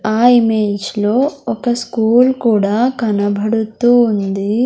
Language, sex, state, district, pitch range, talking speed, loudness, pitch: Telugu, female, Andhra Pradesh, Sri Satya Sai, 210-240 Hz, 105 wpm, -14 LUFS, 225 Hz